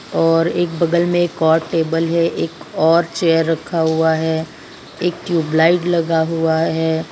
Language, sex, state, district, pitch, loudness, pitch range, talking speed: Hindi, female, Gujarat, Valsad, 165 Hz, -17 LUFS, 160-170 Hz, 160 wpm